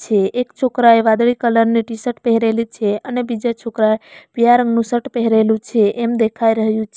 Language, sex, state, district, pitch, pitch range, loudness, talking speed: Gujarati, female, Gujarat, Valsad, 230 Hz, 220-240 Hz, -16 LUFS, 180 wpm